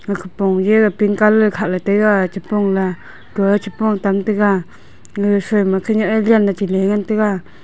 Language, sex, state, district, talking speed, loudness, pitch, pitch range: Wancho, female, Arunachal Pradesh, Longding, 180 wpm, -16 LUFS, 205 Hz, 195-215 Hz